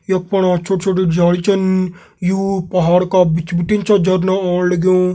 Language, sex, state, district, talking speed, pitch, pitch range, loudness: Garhwali, male, Uttarakhand, Tehri Garhwal, 165 wpm, 185 Hz, 180-190 Hz, -15 LUFS